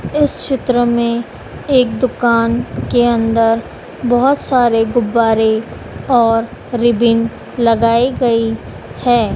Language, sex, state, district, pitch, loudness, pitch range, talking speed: Hindi, female, Madhya Pradesh, Dhar, 235 Hz, -14 LUFS, 230-245 Hz, 95 wpm